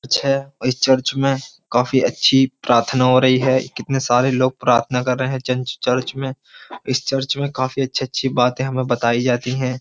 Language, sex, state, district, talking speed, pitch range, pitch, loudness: Hindi, male, Uttar Pradesh, Jyotiba Phule Nagar, 190 wpm, 125-135 Hz, 130 Hz, -18 LUFS